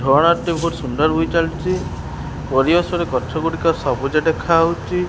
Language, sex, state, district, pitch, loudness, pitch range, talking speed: Odia, male, Odisha, Khordha, 160 Hz, -18 LUFS, 135-170 Hz, 80 wpm